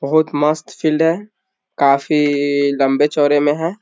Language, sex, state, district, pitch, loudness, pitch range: Hindi, male, Bihar, East Champaran, 145 Hz, -16 LUFS, 140-155 Hz